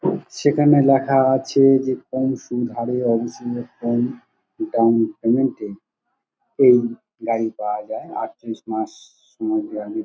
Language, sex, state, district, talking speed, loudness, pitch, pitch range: Bengali, male, West Bengal, Dakshin Dinajpur, 120 wpm, -20 LUFS, 125 Hz, 115-135 Hz